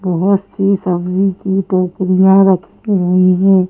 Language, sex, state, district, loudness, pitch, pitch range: Hindi, female, Madhya Pradesh, Bhopal, -13 LUFS, 190 Hz, 185-195 Hz